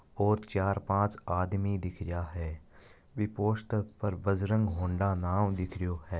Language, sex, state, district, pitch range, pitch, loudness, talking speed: Marwari, male, Rajasthan, Nagaur, 90-105 Hz, 100 Hz, -32 LUFS, 155 wpm